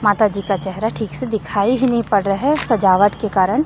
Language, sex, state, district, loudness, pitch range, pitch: Hindi, female, Chhattisgarh, Raipur, -17 LUFS, 195-235 Hz, 210 Hz